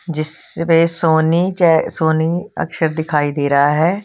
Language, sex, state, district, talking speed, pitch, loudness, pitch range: Hindi, female, Punjab, Kapurthala, 135 wpm, 160 Hz, -16 LUFS, 155-170 Hz